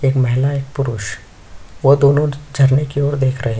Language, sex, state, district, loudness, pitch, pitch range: Hindi, male, Chhattisgarh, Sukma, -16 LUFS, 135 Hz, 115-140 Hz